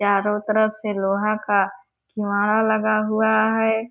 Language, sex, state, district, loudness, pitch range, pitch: Hindi, female, Bihar, Purnia, -21 LUFS, 205-220 Hz, 215 Hz